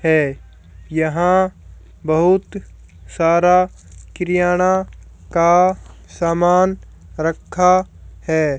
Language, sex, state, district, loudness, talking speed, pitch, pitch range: Hindi, female, Haryana, Charkhi Dadri, -17 LUFS, 65 wpm, 170 Hz, 145-180 Hz